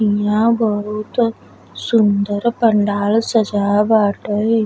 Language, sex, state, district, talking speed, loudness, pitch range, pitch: Bhojpuri, female, Uttar Pradesh, Deoria, 75 wpm, -16 LUFS, 205-225 Hz, 215 Hz